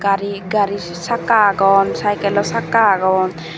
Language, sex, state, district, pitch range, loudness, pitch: Chakma, female, Tripura, Dhalai, 185-205 Hz, -16 LUFS, 200 Hz